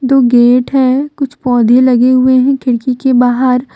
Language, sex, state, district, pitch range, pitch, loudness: Hindi, female, Jharkhand, Deoghar, 245-265 Hz, 255 Hz, -10 LUFS